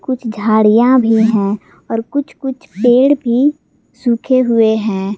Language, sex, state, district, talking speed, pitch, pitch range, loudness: Hindi, female, Jharkhand, Palamu, 140 wpm, 235 Hz, 220-255 Hz, -14 LUFS